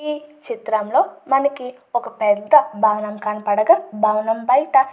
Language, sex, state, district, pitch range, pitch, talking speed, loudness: Telugu, female, Andhra Pradesh, Chittoor, 215-290 Hz, 240 Hz, 120 wpm, -18 LUFS